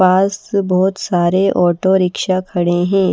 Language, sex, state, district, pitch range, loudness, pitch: Hindi, female, Bihar, Patna, 180-195 Hz, -15 LUFS, 185 Hz